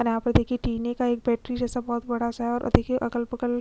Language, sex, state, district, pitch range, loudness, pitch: Hindi, female, Chhattisgarh, Kabirdham, 235-245 Hz, -26 LUFS, 240 Hz